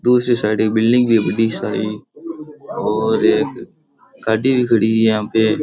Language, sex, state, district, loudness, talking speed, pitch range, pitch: Rajasthani, male, Rajasthan, Churu, -16 LUFS, 160 wpm, 110-125 Hz, 115 Hz